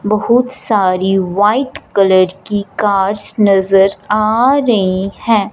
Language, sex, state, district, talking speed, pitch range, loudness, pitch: Hindi, female, Punjab, Fazilka, 110 wpm, 195-215 Hz, -13 LUFS, 205 Hz